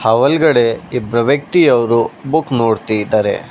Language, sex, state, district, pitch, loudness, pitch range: Kannada, male, Karnataka, Bangalore, 115 Hz, -14 LUFS, 110-140 Hz